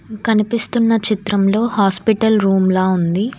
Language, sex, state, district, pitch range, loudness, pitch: Telugu, female, Telangana, Hyderabad, 195-225 Hz, -15 LUFS, 215 Hz